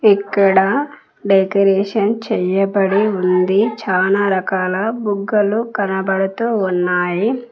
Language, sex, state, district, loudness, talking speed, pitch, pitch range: Telugu, female, Telangana, Mahabubabad, -16 LUFS, 70 wpm, 200 Hz, 190-215 Hz